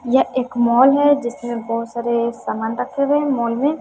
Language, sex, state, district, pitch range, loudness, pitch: Hindi, female, Bihar, West Champaran, 235-275 Hz, -18 LUFS, 245 Hz